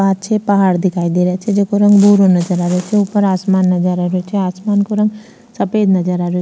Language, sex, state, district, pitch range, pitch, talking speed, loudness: Rajasthani, female, Rajasthan, Nagaur, 180-205 Hz, 195 Hz, 250 wpm, -14 LUFS